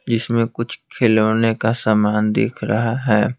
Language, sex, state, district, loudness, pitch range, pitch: Hindi, male, Bihar, Patna, -18 LUFS, 110-115 Hz, 115 Hz